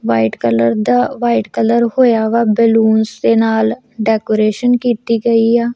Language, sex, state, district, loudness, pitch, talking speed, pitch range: Punjabi, female, Punjab, Kapurthala, -13 LUFS, 225 Hz, 145 wpm, 190-235 Hz